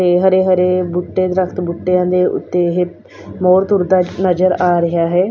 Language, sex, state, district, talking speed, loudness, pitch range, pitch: Punjabi, female, Punjab, Fazilka, 170 wpm, -15 LUFS, 175-185 Hz, 180 Hz